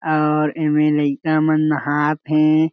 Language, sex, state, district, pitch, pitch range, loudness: Chhattisgarhi, male, Chhattisgarh, Jashpur, 150 Hz, 150-155 Hz, -18 LUFS